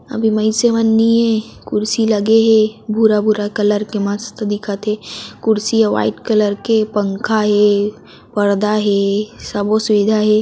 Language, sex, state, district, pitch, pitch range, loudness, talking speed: Chhattisgarhi, female, Chhattisgarh, Raigarh, 215 Hz, 205-220 Hz, -15 LUFS, 160 wpm